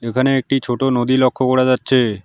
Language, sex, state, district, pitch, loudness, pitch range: Bengali, male, West Bengal, Alipurduar, 130 Hz, -16 LUFS, 120-130 Hz